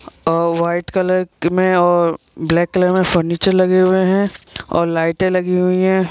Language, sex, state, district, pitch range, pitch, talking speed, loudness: Hindi, male, Bihar, Vaishali, 170-185 Hz, 180 Hz, 165 wpm, -16 LUFS